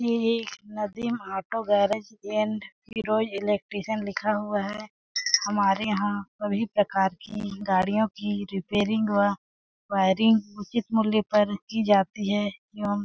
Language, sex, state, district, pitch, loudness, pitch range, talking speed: Hindi, female, Chhattisgarh, Balrampur, 210 Hz, -26 LUFS, 200-215 Hz, 130 wpm